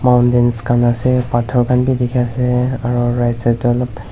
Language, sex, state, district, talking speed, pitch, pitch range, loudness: Nagamese, male, Nagaland, Dimapur, 175 wpm, 120 Hz, 120-125 Hz, -15 LUFS